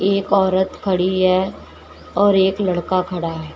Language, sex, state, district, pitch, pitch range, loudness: Hindi, female, Uttar Pradesh, Shamli, 185 Hz, 175-195 Hz, -18 LUFS